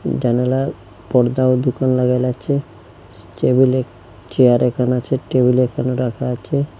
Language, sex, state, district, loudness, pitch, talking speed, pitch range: Bengali, male, Assam, Hailakandi, -17 LUFS, 125 Hz, 125 wpm, 120-130 Hz